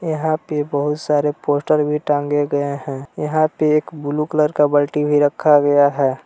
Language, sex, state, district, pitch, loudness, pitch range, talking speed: Hindi, male, Jharkhand, Palamu, 150 Hz, -18 LUFS, 145-150 Hz, 190 wpm